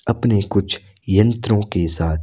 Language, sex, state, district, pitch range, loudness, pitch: Hindi, male, Himachal Pradesh, Shimla, 95-110 Hz, -19 LUFS, 100 Hz